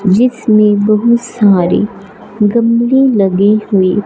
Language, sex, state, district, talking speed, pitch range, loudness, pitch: Hindi, male, Punjab, Fazilka, 90 wpm, 200-235 Hz, -11 LUFS, 210 Hz